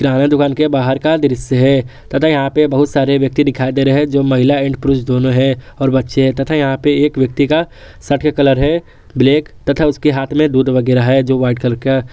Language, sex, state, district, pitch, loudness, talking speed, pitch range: Hindi, male, Jharkhand, Garhwa, 135 Hz, -14 LUFS, 240 wpm, 130-145 Hz